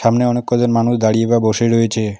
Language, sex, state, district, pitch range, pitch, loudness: Bengali, male, West Bengal, Alipurduar, 110-120 Hz, 115 Hz, -15 LUFS